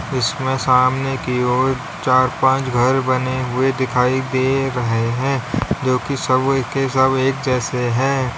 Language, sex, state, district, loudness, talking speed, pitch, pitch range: Hindi, male, Uttar Pradesh, Lalitpur, -18 LUFS, 145 wpm, 130 Hz, 125-135 Hz